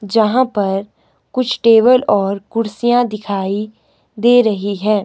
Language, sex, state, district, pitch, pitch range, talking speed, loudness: Hindi, male, Himachal Pradesh, Shimla, 215 Hz, 205-240 Hz, 120 wpm, -15 LUFS